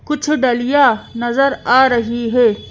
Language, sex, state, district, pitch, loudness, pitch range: Hindi, female, Madhya Pradesh, Bhopal, 250 Hz, -15 LUFS, 235-275 Hz